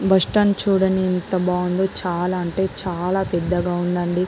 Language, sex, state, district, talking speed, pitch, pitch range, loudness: Telugu, female, Andhra Pradesh, Guntur, 125 wpm, 180 Hz, 180-190 Hz, -20 LUFS